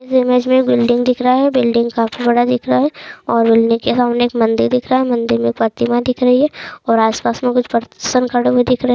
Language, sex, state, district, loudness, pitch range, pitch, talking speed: Hindi, female, Chhattisgarh, Raigarh, -14 LUFS, 235-250 Hz, 245 Hz, 260 wpm